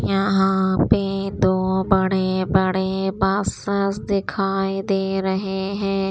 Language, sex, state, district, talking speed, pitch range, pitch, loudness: Hindi, female, Maharashtra, Washim, 100 wpm, 190-195 Hz, 195 Hz, -21 LUFS